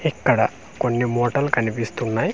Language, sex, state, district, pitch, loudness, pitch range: Telugu, male, Andhra Pradesh, Manyam, 120 Hz, -22 LUFS, 115-120 Hz